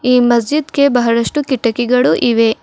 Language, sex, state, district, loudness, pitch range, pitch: Kannada, female, Karnataka, Bidar, -13 LUFS, 235-270 Hz, 245 Hz